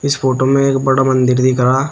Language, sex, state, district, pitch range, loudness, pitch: Hindi, male, Uttar Pradesh, Shamli, 130-135 Hz, -13 LUFS, 135 Hz